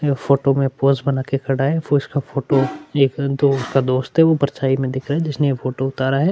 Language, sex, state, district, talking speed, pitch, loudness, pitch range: Hindi, male, Chhattisgarh, Korba, 245 wpm, 135 Hz, -19 LUFS, 135-145 Hz